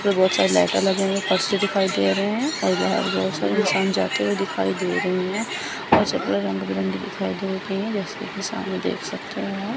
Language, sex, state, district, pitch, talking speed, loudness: Hindi, female, Chandigarh, Chandigarh, 190 Hz, 235 wpm, -22 LUFS